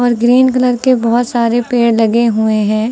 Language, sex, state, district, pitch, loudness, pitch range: Hindi, female, Uttar Pradesh, Lucknow, 235 Hz, -12 LUFS, 230-245 Hz